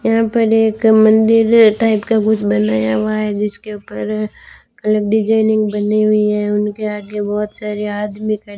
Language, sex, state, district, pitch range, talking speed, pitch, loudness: Hindi, female, Rajasthan, Bikaner, 210-220 Hz, 170 wpm, 215 Hz, -15 LUFS